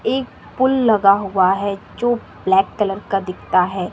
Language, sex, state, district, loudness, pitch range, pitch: Hindi, female, Bihar, West Champaran, -18 LUFS, 190-225 Hz, 195 Hz